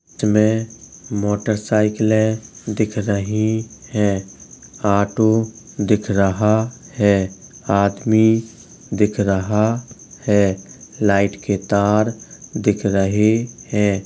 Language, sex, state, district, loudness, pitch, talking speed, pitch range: Hindi, male, Uttar Pradesh, Jalaun, -19 LUFS, 105 Hz, 85 wpm, 100-110 Hz